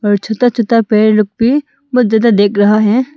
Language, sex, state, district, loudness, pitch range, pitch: Hindi, female, Arunachal Pradesh, Longding, -12 LUFS, 215-245 Hz, 225 Hz